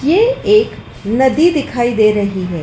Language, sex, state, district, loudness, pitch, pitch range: Hindi, female, Madhya Pradesh, Dhar, -14 LUFS, 260 Hz, 210-350 Hz